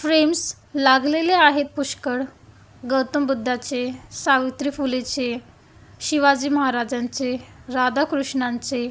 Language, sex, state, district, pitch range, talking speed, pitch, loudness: Marathi, female, Maharashtra, Gondia, 250-285 Hz, 75 wpm, 265 Hz, -21 LUFS